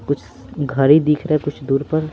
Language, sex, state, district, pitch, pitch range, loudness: Hindi, male, Bihar, Patna, 145 Hz, 140-155 Hz, -18 LUFS